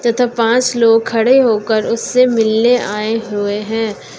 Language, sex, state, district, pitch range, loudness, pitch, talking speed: Hindi, female, Uttar Pradesh, Lucknow, 220-240 Hz, -14 LUFS, 225 Hz, 145 wpm